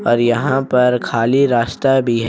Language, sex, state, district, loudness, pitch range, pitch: Hindi, male, Jharkhand, Ranchi, -15 LUFS, 120-135 Hz, 125 Hz